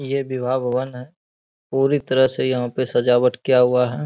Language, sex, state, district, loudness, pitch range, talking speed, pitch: Hindi, male, Bihar, Bhagalpur, -19 LUFS, 125-130 Hz, 190 wpm, 130 Hz